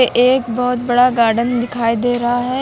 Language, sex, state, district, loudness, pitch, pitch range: Hindi, female, Uttar Pradesh, Lucknow, -15 LUFS, 245 Hz, 240-250 Hz